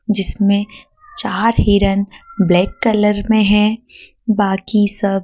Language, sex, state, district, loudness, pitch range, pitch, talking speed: Hindi, female, Madhya Pradesh, Dhar, -15 LUFS, 200-220 Hz, 210 Hz, 105 wpm